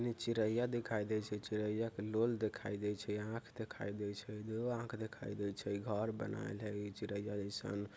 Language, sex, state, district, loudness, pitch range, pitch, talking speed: Bajjika, male, Bihar, Vaishali, -41 LUFS, 105-115 Hz, 105 Hz, 190 wpm